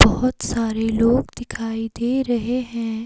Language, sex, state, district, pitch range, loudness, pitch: Hindi, female, Himachal Pradesh, Shimla, 225-245 Hz, -21 LUFS, 230 Hz